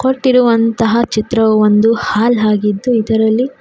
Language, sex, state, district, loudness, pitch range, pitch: Kannada, female, Karnataka, Koppal, -12 LUFS, 215-240 Hz, 225 Hz